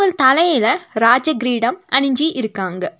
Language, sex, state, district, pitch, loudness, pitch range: Tamil, female, Tamil Nadu, Nilgiris, 260 Hz, -16 LUFS, 230-315 Hz